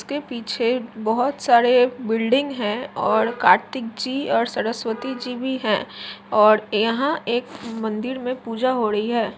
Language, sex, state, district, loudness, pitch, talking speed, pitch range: Hindi, female, Jharkhand, Jamtara, -21 LUFS, 235 Hz, 145 wpm, 220-255 Hz